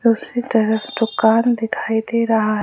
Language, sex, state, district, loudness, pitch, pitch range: Hindi, female, Jharkhand, Ranchi, -18 LUFS, 225 Hz, 220-235 Hz